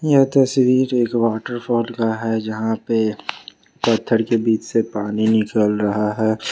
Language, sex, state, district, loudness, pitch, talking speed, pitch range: Hindi, male, Jharkhand, Ranchi, -19 LUFS, 115 Hz, 145 wpm, 110-120 Hz